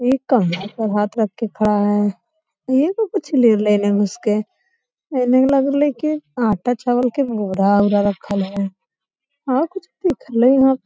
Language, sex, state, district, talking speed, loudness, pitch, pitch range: Magahi, female, Bihar, Lakhisarai, 130 wpm, -18 LUFS, 245 Hz, 205-275 Hz